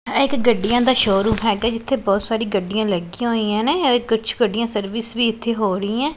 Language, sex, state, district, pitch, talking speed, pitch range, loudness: Punjabi, female, Punjab, Pathankot, 225 Hz, 215 wpm, 210-240 Hz, -19 LUFS